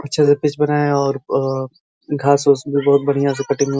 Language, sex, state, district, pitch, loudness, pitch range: Hindi, male, Uttar Pradesh, Ghazipur, 140 Hz, -17 LUFS, 140-145 Hz